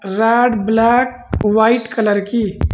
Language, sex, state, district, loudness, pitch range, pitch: Hindi, male, Uttar Pradesh, Saharanpur, -15 LUFS, 210-235 Hz, 225 Hz